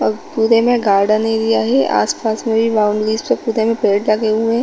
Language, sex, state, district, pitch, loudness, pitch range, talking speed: Hindi, female, Chhattisgarh, Rajnandgaon, 220 Hz, -15 LUFS, 205-225 Hz, 245 wpm